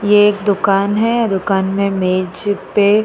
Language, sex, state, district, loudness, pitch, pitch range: Hindi, female, Uttar Pradesh, Jyotiba Phule Nagar, -15 LUFS, 200 Hz, 195-210 Hz